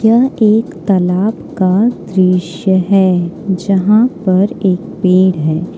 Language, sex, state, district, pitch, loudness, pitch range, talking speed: Hindi, female, Jharkhand, Ranchi, 190 Hz, -13 LUFS, 185-215 Hz, 115 wpm